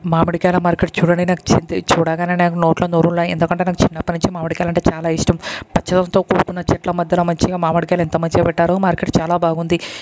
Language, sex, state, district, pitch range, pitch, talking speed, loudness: Telugu, male, Andhra Pradesh, Krishna, 170-180 Hz, 175 Hz, 170 wpm, -17 LUFS